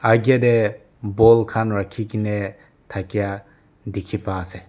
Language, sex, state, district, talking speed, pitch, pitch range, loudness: Nagamese, male, Nagaland, Dimapur, 115 wpm, 105 Hz, 100-110 Hz, -20 LUFS